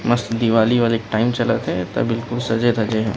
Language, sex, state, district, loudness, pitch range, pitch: Chhattisgarhi, male, Chhattisgarh, Rajnandgaon, -19 LUFS, 110-120 Hz, 115 Hz